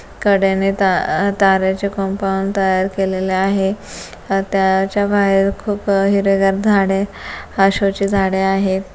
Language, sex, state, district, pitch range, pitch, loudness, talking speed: Marathi, female, Maharashtra, Pune, 195-200 Hz, 195 Hz, -16 LUFS, 120 wpm